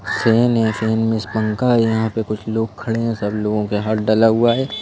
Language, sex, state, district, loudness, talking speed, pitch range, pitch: Hindi, male, Madhya Pradesh, Bhopal, -18 LUFS, 235 wpm, 110-115 Hz, 110 Hz